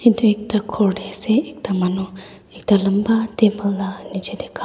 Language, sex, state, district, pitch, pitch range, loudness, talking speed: Nagamese, female, Nagaland, Dimapur, 205 Hz, 195-220 Hz, -19 LUFS, 170 wpm